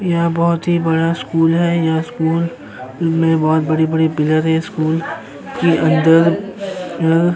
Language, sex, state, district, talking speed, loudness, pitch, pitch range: Hindi, male, Uttar Pradesh, Jyotiba Phule Nagar, 145 wpm, -16 LUFS, 165 Hz, 160-170 Hz